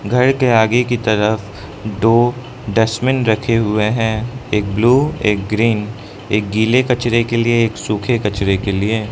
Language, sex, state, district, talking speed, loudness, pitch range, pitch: Hindi, male, Arunachal Pradesh, Lower Dibang Valley, 160 wpm, -16 LUFS, 105-120 Hz, 110 Hz